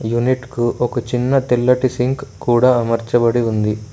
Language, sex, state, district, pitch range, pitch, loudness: Telugu, male, Telangana, Mahabubabad, 115-125 Hz, 120 Hz, -17 LUFS